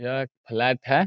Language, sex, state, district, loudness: Hindi, male, Bihar, Saran, -25 LUFS